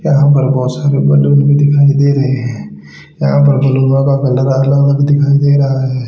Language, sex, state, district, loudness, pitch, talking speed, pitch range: Hindi, male, Haryana, Rohtak, -11 LUFS, 140 Hz, 175 wpm, 130-140 Hz